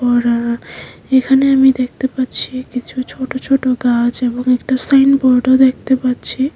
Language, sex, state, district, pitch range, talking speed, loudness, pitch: Bengali, female, Tripura, West Tripura, 250-265 Hz, 130 wpm, -14 LUFS, 255 Hz